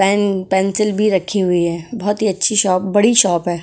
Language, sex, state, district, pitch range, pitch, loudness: Hindi, female, Uttar Pradesh, Etah, 185-205 Hz, 195 Hz, -15 LUFS